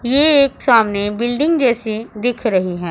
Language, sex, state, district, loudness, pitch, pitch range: Hindi, female, Punjab, Pathankot, -16 LUFS, 235 Hz, 210-265 Hz